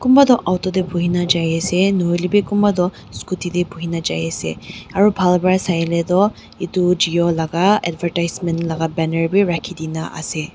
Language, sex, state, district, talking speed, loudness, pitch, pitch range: Nagamese, female, Nagaland, Dimapur, 160 wpm, -18 LUFS, 175 Hz, 165-185 Hz